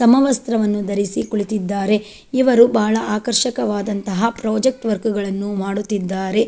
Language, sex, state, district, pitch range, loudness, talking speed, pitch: Kannada, female, Karnataka, Dakshina Kannada, 205-230 Hz, -18 LUFS, 95 wpm, 215 Hz